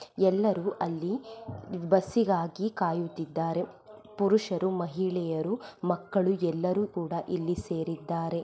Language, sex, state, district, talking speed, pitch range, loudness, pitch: Kannada, female, Karnataka, Belgaum, 80 wpm, 170-200 Hz, -30 LUFS, 180 Hz